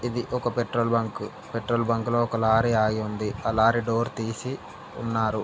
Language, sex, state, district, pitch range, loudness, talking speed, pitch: Telugu, male, Telangana, Karimnagar, 110-120 Hz, -25 LUFS, 155 wpm, 115 Hz